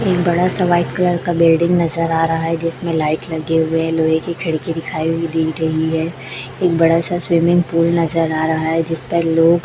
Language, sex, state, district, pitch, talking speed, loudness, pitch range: Hindi, male, Chhattisgarh, Raipur, 165 Hz, 225 wpm, -17 LUFS, 160-170 Hz